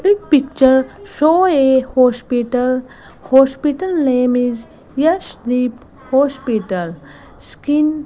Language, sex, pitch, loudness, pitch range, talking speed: English, female, 260 Hz, -15 LUFS, 245-295 Hz, 90 wpm